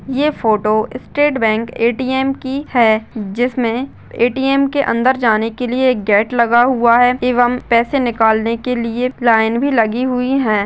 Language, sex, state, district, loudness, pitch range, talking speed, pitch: Hindi, female, Chhattisgarh, Bastar, -15 LUFS, 230-260 Hz, 170 wpm, 245 Hz